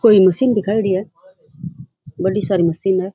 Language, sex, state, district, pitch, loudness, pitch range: Rajasthani, female, Rajasthan, Churu, 190 Hz, -16 LUFS, 170-210 Hz